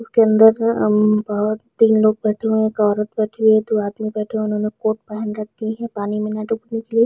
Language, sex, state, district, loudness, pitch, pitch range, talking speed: Hindi, female, Chhattisgarh, Bilaspur, -18 LUFS, 215 Hz, 215-220 Hz, 245 wpm